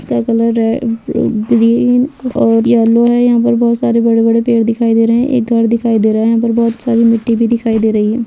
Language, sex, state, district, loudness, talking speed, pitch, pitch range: Hindi, female, Bihar, Jahanabad, -12 LUFS, 240 wpm, 230 Hz, 225-235 Hz